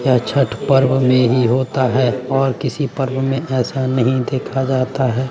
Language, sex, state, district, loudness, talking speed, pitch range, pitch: Hindi, male, Bihar, West Champaran, -17 LUFS, 180 wpm, 125-135 Hz, 130 Hz